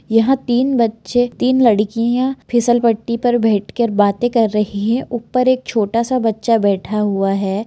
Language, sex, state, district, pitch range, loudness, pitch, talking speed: Hindi, female, Jharkhand, Jamtara, 210-245 Hz, -16 LUFS, 230 Hz, 165 wpm